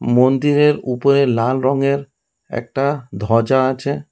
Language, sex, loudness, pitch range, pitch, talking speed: Bengali, male, -17 LUFS, 125-140 Hz, 135 Hz, 100 wpm